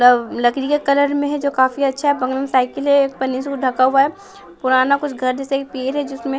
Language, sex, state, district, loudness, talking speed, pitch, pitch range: Hindi, male, Bihar, West Champaran, -18 LUFS, 235 wpm, 270 Hz, 260-285 Hz